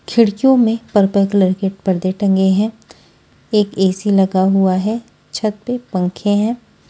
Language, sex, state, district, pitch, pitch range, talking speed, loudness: Hindi, female, Punjab, Fazilka, 200 Hz, 190-220 Hz, 150 wpm, -16 LUFS